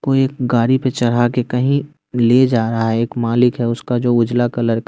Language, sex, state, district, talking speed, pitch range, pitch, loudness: Hindi, male, Bihar, West Champaran, 245 wpm, 115-130 Hz, 120 Hz, -16 LUFS